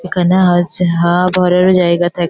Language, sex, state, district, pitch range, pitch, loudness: Bengali, female, West Bengal, Kolkata, 175-180 Hz, 180 Hz, -12 LUFS